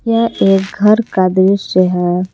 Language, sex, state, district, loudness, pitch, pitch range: Hindi, female, Jharkhand, Palamu, -13 LUFS, 190 Hz, 185-210 Hz